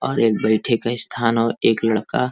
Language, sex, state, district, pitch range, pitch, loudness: Bhojpuri, male, Uttar Pradesh, Varanasi, 110-115 Hz, 115 Hz, -19 LUFS